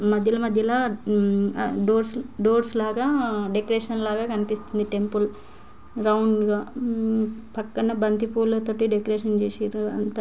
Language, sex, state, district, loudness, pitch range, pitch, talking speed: Telugu, female, Andhra Pradesh, Guntur, -24 LUFS, 210-225 Hz, 220 Hz, 130 wpm